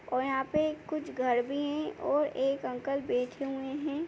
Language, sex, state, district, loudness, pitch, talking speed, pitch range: Hindi, female, Chhattisgarh, Jashpur, -32 LUFS, 275 Hz, 190 wpm, 265-300 Hz